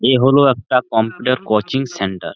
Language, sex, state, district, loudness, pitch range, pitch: Bengali, male, West Bengal, Malda, -16 LUFS, 110-130 Hz, 125 Hz